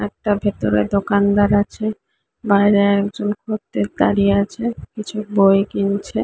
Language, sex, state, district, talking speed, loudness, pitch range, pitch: Bengali, female, West Bengal, Kolkata, 115 wpm, -18 LUFS, 200-210 Hz, 200 Hz